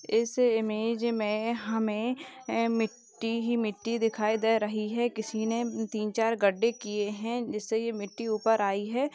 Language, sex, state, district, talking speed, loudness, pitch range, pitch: Hindi, female, Uttar Pradesh, Jalaun, 155 wpm, -29 LUFS, 215-235 Hz, 225 Hz